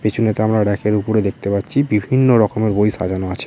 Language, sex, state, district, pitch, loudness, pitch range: Bengali, male, West Bengal, Purulia, 105 Hz, -17 LUFS, 100-110 Hz